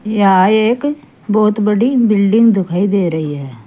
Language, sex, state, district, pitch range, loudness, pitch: Hindi, female, Uttar Pradesh, Saharanpur, 180-220 Hz, -13 LUFS, 210 Hz